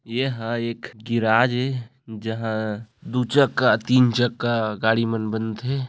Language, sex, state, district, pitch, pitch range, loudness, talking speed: Chhattisgarhi, male, Chhattisgarh, Raigarh, 115 Hz, 110-125 Hz, -22 LUFS, 120 wpm